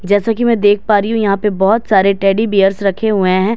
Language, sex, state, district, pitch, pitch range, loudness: Hindi, female, Bihar, Katihar, 205 Hz, 195-220 Hz, -13 LUFS